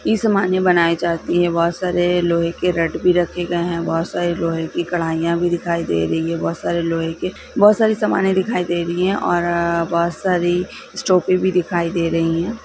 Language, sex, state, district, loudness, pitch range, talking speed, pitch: Hindi, female, Bihar, Lakhisarai, -18 LUFS, 170-180 Hz, 220 wpm, 175 Hz